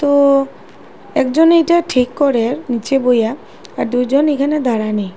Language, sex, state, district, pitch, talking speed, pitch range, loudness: Bengali, female, Assam, Hailakandi, 270 Hz, 125 wpm, 240-290 Hz, -15 LUFS